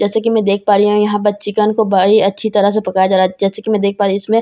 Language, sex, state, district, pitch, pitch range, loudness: Hindi, female, Bihar, Katihar, 205 Hz, 200-215 Hz, -14 LUFS